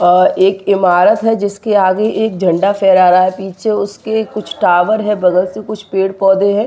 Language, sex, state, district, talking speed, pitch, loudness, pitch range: Hindi, male, West Bengal, Dakshin Dinajpur, 190 wpm, 200 Hz, -13 LUFS, 185-215 Hz